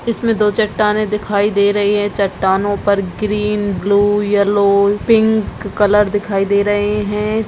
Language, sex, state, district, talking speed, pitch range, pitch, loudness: Hindi, female, Chhattisgarh, Raigarh, 145 wpm, 200-210 Hz, 205 Hz, -15 LUFS